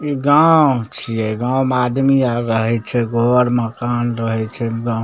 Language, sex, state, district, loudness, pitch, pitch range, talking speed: Maithili, male, Bihar, Samastipur, -17 LUFS, 120 Hz, 115-130 Hz, 180 wpm